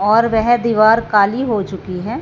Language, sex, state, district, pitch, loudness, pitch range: Hindi, female, Punjab, Fazilka, 220 Hz, -15 LUFS, 205-230 Hz